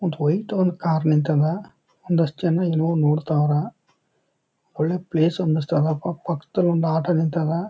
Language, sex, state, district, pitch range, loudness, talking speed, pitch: Kannada, male, Karnataka, Chamarajanagar, 155-175 Hz, -22 LUFS, 150 wpm, 165 Hz